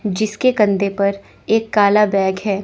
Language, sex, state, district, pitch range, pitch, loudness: Hindi, female, Chandigarh, Chandigarh, 200-215 Hz, 205 Hz, -16 LUFS